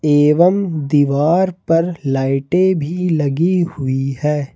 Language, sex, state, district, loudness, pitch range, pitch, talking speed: Hindi, male, Jharkhand, Ranchi, -16 LUFS, 140-175 Hz, 150 Hz, 105 wpm